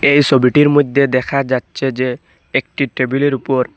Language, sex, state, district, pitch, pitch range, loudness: Bengali, male, Assam, Hailakandi, 135 Hz, 130-140 Hz, -15 LUFS